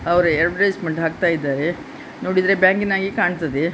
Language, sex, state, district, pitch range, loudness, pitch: Kannada, female, Karnataka, Dakshina Kannada, 165-195 Hz, -19 LUFS, 175 Hz